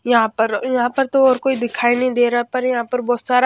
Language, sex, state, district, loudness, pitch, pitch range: Hindi, female, Haryana, Jhajjar, -17 LUFS, 245 Hz, 240-255 Hz